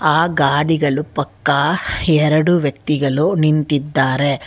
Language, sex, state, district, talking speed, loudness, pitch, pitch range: Kannada, female, Karnataka, Bangalore, 80 wpm, -16 LUFS, 150 Hz, 140-155 Hz